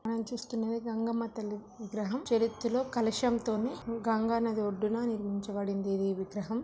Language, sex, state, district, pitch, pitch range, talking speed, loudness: Telugu, female, Andhra Pradesh, Krishna, 225 Hz, 210-230 Hz, 135 wpm, -33 LUFS